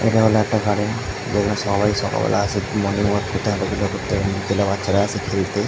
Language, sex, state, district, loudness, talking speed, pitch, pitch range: Bengali, male, West Bengal, Jhargram, -20 LUFS, 190 wpm, 100 Hz, 100-105 Hz